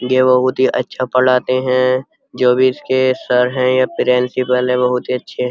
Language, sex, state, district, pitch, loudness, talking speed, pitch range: Hindi, male, Uttar Pradesh, Muzaffarnagar, 130 Hz, -15 LUFS, 195 wpm, 125-130 Hz